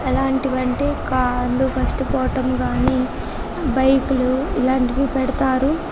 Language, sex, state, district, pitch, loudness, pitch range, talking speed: Telugu, female, Telangana, Karimnagar, 265 Hz, -20 LUFS, 255-270 Hz, 80 wpm